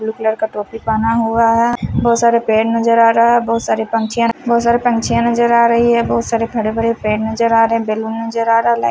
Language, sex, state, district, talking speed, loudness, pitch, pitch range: Hindi, male, Punjab, Fazilka, 270 wpm, -14 LUFS, 230 Hz, 220-235 Hz